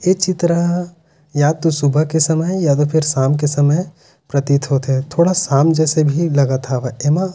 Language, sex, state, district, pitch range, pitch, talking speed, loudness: Hindi, male, Chhattisgarh, Raigarh, 140-170 Hz, 150 Hz, 205 wpm, -16 LUFS